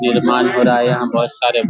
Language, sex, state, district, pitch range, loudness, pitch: Hindi, male, Bihar, Darbhanga, 120-125 Hz, -15 LUFS, 120 Hz